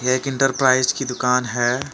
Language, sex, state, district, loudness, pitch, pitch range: Hindi, male, Jharkhand, Deoghar, -19 LUFS, 130 Hz, 125-135 Hz